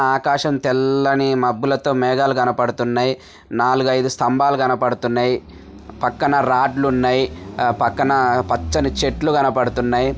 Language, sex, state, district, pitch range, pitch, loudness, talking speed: Telugu, male, Telangana, Nalgonda, 125-135 Hz, 130 Hz, -18 LUFS, 95 wpm